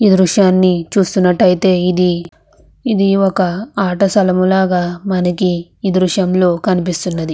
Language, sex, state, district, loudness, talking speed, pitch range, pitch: Telugu, female, Andhra Pradesh, Krishna, -14 LUFS, 125 wpm, 180-195 Hz, 185 Hz